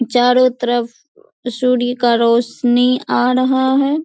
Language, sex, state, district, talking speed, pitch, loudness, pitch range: Hindi, female, Bihar, Purnia, 120 wpm, 250 Hz, -15 LUFS, 240-260 Hz